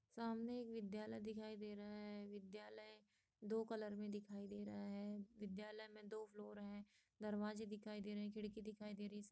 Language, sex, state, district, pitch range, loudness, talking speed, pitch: Hindi, female, Jharkhand, Sahebganj, 205-215 Hz, -51 LUFS, 195 wpm, 210 Hz